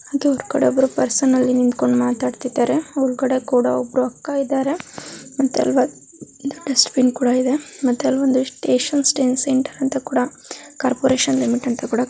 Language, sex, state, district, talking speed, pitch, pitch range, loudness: Kannada, female, Karnataka, Mysore, 90 wpm, 260 Hz, 250-275 Hz, -19 LUFS